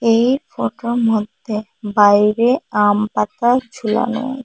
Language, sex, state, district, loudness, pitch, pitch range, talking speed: Bengali, female, Assam, Hailakandi, -17 LUFS, 230 Hz, 210-245 Hz, 80 wpm